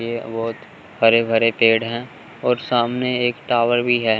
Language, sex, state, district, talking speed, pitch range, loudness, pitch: Hindi, male, Chandigarh, Chandigarh, 170 wpm, 115-120 Hz, -19 LUFS, 115 Hz